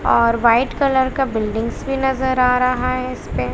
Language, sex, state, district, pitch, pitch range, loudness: Hindi, female, Bihar, West Champaran, 255 Hz, 235-265 Hz, -18 LUFS